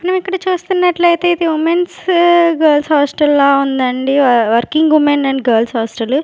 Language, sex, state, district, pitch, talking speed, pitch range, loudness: Telugu, female, Andhra Pradesh, Sri Satya Sai, 300 Hz, 145 wpm, 270-345 Hz, -13 LUFS